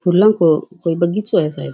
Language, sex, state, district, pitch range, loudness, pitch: Rajasthani, female, Rajasthan, Churu, 160-190 Hz, -16 LUFS, 170 Hz